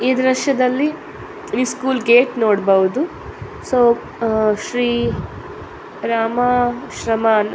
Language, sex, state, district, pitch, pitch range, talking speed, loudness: Kannada, female, Karnataka, Dakshina Kannada, 245 Hz, 225-255 Hz, 85 wpm, -17 LUFS